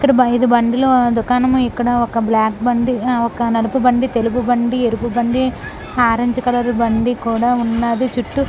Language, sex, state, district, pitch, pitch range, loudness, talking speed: Telugu, female, Andhra Pradesh, Krishna, 240 Hz, 235-250 Hz, -16 LUFS, 150 wpm